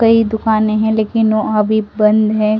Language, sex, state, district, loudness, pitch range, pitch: Hindi, female, Delhi, New Delhi, -14 LUFS, 215-220 Hz, 215 Hz